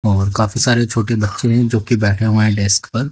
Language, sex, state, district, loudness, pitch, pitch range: Hindi, male, Haryana, Jhajjar, -15 LUFS, 110 Hz, 105-120 Hz